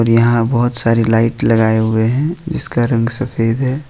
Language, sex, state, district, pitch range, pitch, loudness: Hindi, male, Jharkhand, Ranchi, 115-130 Hz, 115 Hz, -14 LUFS